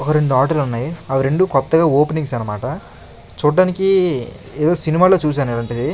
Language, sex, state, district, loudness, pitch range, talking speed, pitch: Telugu, male, Andhra Pradesh, Krishna, -17 LUFS, 120-165 Hz, 150 wpm, 145 Hz